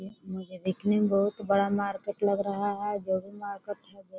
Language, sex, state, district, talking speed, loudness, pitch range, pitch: Hindi, female, Chhattisgarh, Korba, 170 wpm, -30 LUFS, 195-205 Hz, 200 Hz